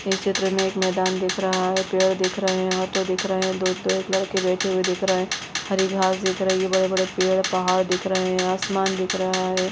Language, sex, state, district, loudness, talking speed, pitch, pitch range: Hindi, female, Chhattisgarh, Bastar, -22 LUFS, 245 wpm, 190 Hz, 185-190 Hz